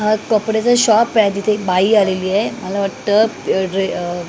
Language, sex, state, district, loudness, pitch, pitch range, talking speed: Marathi, female, Maharashtra, Mumbai Suburban, -16 LUFS, 210 Hz, 190-220 Hz, 210 wpm